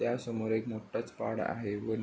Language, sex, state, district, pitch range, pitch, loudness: Marathi, male, Maharashtra, Pune, 110-115 Hz, 110 Hz, -35 LUFS